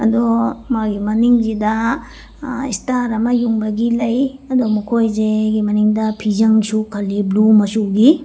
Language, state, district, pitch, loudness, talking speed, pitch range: Manipuri, Manipur, Imphal West, 220 Hz, -16 LUFS, 110 wpm, 215-240 Hz